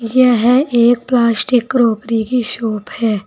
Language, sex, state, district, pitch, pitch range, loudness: Hindi, female, Uttar Pradesh, Saharanpur, 235 Hz, 225-250 Hz, -14 LUFS